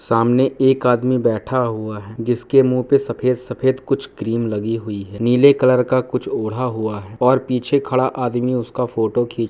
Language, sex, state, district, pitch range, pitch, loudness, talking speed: Hindi, male, Bihar, Purnia, 115-130 Hz, 125 Hz, -18 LUFS, 195 wpm